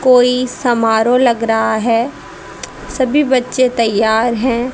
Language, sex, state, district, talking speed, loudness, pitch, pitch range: Hindi, female, Haryana, Jhajjar, 115 wpm, -14 LUFS, 245 Hz, 230-255 Hz